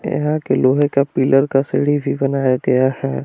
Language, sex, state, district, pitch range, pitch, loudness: Hindi, male, Jharkhand, Palamu, 130-145 Hz, 135 Hz, -17 LUFS